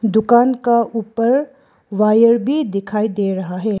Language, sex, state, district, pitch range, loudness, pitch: Hindi, female, Arunachal Pradesh, Lower Dibang Valley, 210-240 Hz, -16 LUFS, 225 Hz